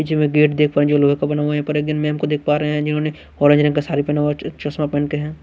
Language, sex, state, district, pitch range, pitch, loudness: Hindi, male, Punjab, Kapurthala, 145-150 Hz, 150 Hz, -18 LUFS